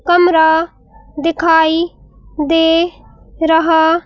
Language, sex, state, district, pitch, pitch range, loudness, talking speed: Hindi, female, Madhya Pradesh, Bhopal, 325 Hz, 320-335 Hz, -13 LUFS, 60 wpm